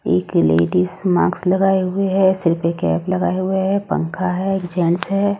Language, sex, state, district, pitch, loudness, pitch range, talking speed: Hindi, female, Odisha, Nuapada, 185 Hz, -18 LUFS, 170-190 Hz, 190 wpm